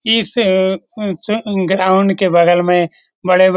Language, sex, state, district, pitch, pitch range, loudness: Hindi, male, Bihar, Lakhisarai, 190 Hz, 180-205 Hz, -14 LUFS